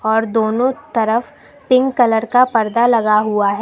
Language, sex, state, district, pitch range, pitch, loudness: Hindi, female, Uttar Pradesh, Lucknow, 220-245 Hz, 225 Hz, -15 LUFS